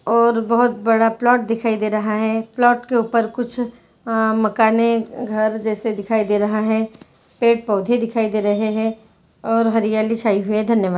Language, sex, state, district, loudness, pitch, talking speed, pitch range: Hindi, female, Bihar, Saran, -18 LUFS, 225 Hz, 170 wpm, 215-230 Hz